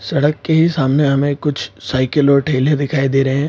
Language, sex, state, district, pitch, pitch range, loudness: Hindi, male, Bihar, Purnia, 140 Hz, 135-150 Hz, -16 LUFS